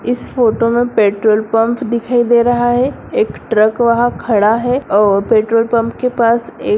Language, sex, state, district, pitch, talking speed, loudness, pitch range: Hindi, female, Bihar, Sitamarhi, 235 Hz, 170 wpm, -13 LUFS, 220-245 Hz